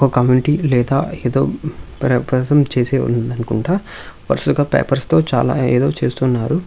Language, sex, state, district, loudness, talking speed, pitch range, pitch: Telugu, male, Andhra Pradesh, Visakhapatnam, -17 LUFS, 115 wpm, 125-145 Hz, 130 Hz